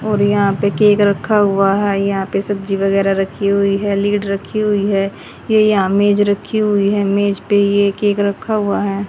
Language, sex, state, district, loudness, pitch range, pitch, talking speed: Hindi, female, Haryana, Jhajjar, -15 LUFS, 195-205 Hz, 200 Hz, 205 wpm